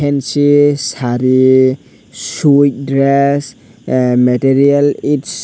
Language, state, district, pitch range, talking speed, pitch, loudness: Kokborok, Tripura, Dhalai, 130-145 Hz, 65 wpm, 135 Hz, -12 LUFS